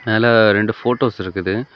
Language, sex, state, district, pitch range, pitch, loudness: Tamil, male, Tamil Nadu, Kanyakumari, 105-120 Hz, 110 Hz, -16 LUFS